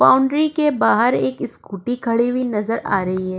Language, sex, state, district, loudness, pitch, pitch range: Hindi, female, Goa, North and South Goa, -19 LUFS, 235 Hz, 200-265 Hz